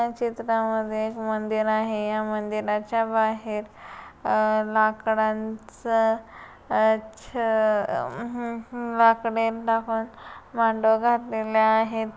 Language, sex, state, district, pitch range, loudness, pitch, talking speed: Marathi, female, Maharashtra, Solapur, 215-230 Hz, -24 LUFS, 220 Hz, 95 wpm